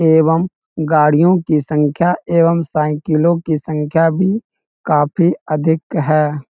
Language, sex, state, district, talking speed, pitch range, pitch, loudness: Hindi, male, Bihar, Muzaffarpur, 120 wpm, 150-170 Hz, 160 Hz, -15 LUFS